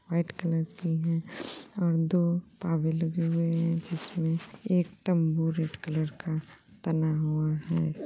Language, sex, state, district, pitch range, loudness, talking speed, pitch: Hindi, female, Uttar Pradesh, Gorakhpur, 160-175 Hz, -30 LUFS, 140 wpm, 165 Hz